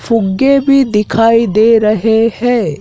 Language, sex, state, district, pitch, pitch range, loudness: Hindi, male, Madhya Pradesh, Dhar, 225 Hz, 215-240 Hz, -11 LUFS